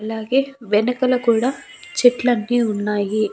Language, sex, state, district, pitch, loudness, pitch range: Telugu, female, Andhra Pradesh, Annamaya, 240 Hz, -19 LUFS, 215-250 Hz